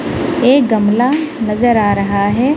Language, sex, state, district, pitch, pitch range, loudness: Hindi, female, Punjab, Kapurthala, 230 Hz, 205-260 Hz, -13 LUFS